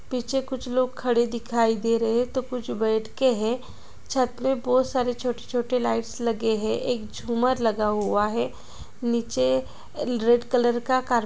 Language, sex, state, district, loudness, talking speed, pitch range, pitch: Hindi, female, Bihar, Jahanabad, -25 LUFS, 175 wpm, 225-255 Hz, 240 Hz